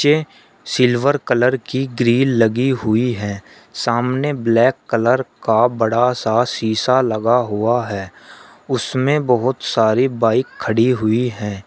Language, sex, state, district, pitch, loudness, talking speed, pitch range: Hindi, male, Uttar Pradesh, Shamli, 120 Hz, -17 LUFS, 130 wpm, 110-130 Hz